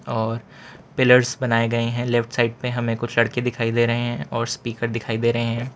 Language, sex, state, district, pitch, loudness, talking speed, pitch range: Hindi, male, Gujarat, Valsad, 120 Hz, -21 LUFS, 220 wpm, 115-120 Hz